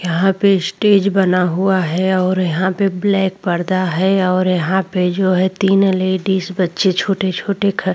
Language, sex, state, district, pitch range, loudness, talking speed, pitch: Hindi, female, Chhattisgarh, Korba, 185-195 Hz, -16 LUFS, 180 wpm, 190 Hz